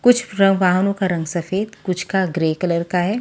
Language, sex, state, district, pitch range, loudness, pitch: Hindi, female, Haryana, Charkhi Dadri, 175-200 Hz, -19 LUFS, 185 Hz